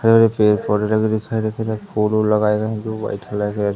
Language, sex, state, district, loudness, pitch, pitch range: Hindi, male, Madhya Pradesh, Umaria, -19 LUFS, 110 Hz, 105-110 Hz